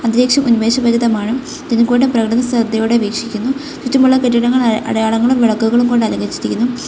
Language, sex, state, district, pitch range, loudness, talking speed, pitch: Malayalam, female, Kerala, Kollam, 225-250 Hz, -14 LUFS, 115 wpm, 235 Hz